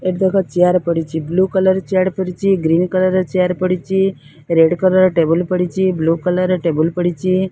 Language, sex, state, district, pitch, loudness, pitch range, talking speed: Odia, female, Odisha, Sambalpur, 185 Hz, -16 LUFS, 170-185 Hz, 145 wpm